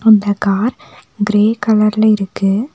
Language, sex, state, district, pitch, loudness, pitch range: Tamil, female, Tamil Nadu, Nilgiris, 215 Hz, -14 LUFS, 205-220 Hz